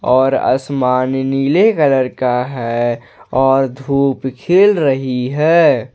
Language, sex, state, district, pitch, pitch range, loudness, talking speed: Hindi, male, Jharkhand, Ranchi, 135 Hz, 125-140 Hz, -14 LUFS, 110 wpm